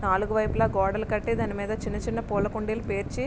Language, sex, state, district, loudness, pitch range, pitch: Telugu, male, Andhra Pradesh, Srikakulam, -27 LUFS, 200-220 Hz, 210 Hz